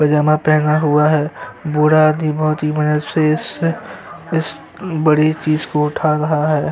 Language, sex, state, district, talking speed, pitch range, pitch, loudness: Hindi, male, Chhattisgarh, Sukma, 160 wpm, 150-155 Hz, 155 Hz, -16 LUFS